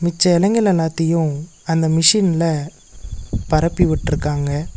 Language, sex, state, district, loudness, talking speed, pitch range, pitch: Tamil, male, Tamil Nadu, Nilgiris, -17 LUFS, 75 wpm, 150-170 Hz, 160 Hz